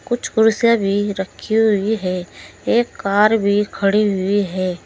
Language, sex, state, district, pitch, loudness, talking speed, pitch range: Hindi, female, Uttar Pradesh, Saharanpur, 205 Hz, -17 LUFS, 150 wpm, 195-220 Hz